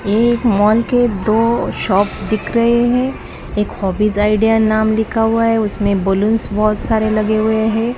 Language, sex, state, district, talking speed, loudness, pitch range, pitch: Hindi, male, Maharashtra, Mumbai Suburban, 165 wpm, -15 LUFS, 210-230 Hz, 220 Hz